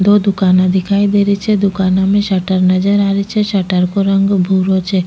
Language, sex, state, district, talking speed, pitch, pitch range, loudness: Rajasthani, female, Rajasthan, Nagaur, 215 wpm, 195 Hz, 185-200 Hz, -13 LUFS